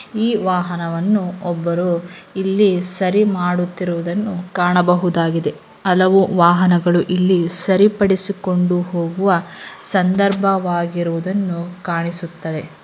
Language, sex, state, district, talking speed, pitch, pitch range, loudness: Kannada, female, Karnataka, Mysore, 70 wpm, 180 Hz, 175-190 Hz, -17 LUFS